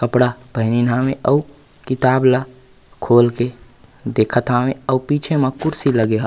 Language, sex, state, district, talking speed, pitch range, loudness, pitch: Chhattisgarhi, male, Chhattisgarh, Raigarh, 165 wpm, 120-135 Hz, -17 LUFS, 125 Hz